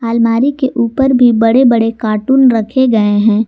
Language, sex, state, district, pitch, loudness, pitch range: Hindi, female, Jharkhand, Garhwa, 235 Hz, -11 LUFS, 225-260 Hz